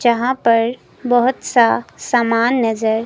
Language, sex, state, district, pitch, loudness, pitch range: Hindi, female, Himachal Pradesh, Shimla, 235 Hz, -16 LUFS, 225-245 Hz